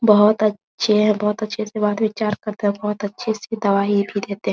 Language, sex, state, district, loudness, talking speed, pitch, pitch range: Hindi, female, Bihar, Araria, -20 LUFS, 240 wpm, 210 Hz, 205-215 Hz